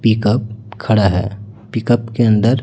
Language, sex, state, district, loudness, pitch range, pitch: Hindi, male, Chhattisgarh, Raipur, -16 LUFS, 105-115 Hz, 110 Hz